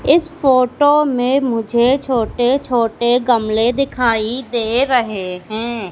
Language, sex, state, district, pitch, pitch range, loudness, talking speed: Hindi, female, Madhya Pradesh, Katni, 240 Hz, 230-265 Hz, -16 LUFS, 110 wpm